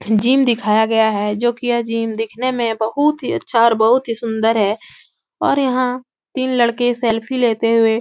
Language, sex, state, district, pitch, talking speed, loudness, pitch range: Hindi, female, Uttar Pradesh, Etah, 230 Hz, 195 wpm, -17 LUFS, 225-250 Hz